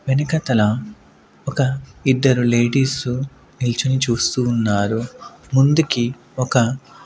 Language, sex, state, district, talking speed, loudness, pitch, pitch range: Telugu, male, Andhra Pradesh, Manyam, 85 wpm, -19 LUFS, 125 Hz, 120-135 Hz